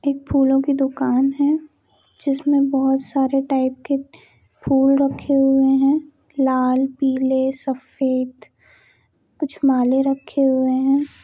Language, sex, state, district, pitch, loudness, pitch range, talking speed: Hindi, female, Jharkhand, Sahebganj, 270 Hz, -19 LUFS, 265-275 Hz, 115 wpm